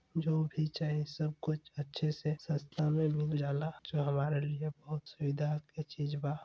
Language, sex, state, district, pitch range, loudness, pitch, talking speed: Hindi, male, Chhattisgarh, Balrampur, 145-155 Hz, -36 LUFS, 150 Hz, 195 wpm